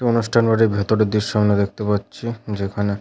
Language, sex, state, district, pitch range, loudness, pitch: Bengali, male, West Bengal, Paschim Medinipur, 100-115 Hz, -20 LUFS, 105 Hz